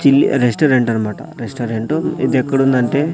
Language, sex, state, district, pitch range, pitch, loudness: Telugu, male, Andhra Pradesh, Sri Satya Sai, 115-140 Hz, 130 Hz, -16 LUFS